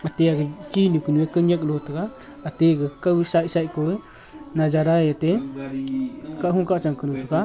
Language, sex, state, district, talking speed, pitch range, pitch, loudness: Wancho, male, Arunachal Pradesh, Longding, 155 wpm, 150-175 Hz, 160 Hz, -22 LUFS